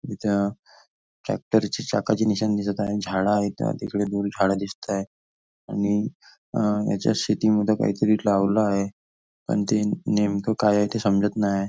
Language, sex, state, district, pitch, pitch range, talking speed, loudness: Marathi, male, Maharashtra, Nagpur, 105 Hz, 100-105 Hz, 150 wpm, -24 LUFS